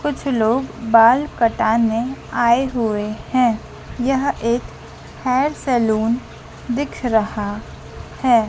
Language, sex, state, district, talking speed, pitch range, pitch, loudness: Hindi, female, Madhya Pradesh, Dhar, 100 wpm, 225-260 Hz, 235 Hz, -19 LUFS